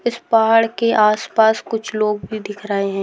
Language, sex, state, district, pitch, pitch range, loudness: Hindi, female, Bihar, Begusarai, 215 Hz, 210-225 Hz, -17 LUFS